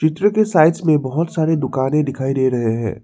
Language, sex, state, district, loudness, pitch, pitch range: Hindi, male, Assam, Sonitpur, -17 LUFS, 150 Hz, 130-160 Hz